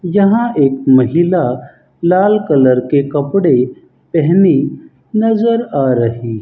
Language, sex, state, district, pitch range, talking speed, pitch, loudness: Hindi, male, Rajasthan, Bikaner, 130-195 Hz, 110 wpm, 155 Hz, -13 LUFS